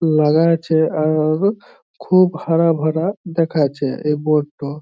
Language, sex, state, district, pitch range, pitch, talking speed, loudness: Bengali, male, West Bengal, Jhargram, 150-165 Hz, 155 Hz, 135 wpm, -17 LUFS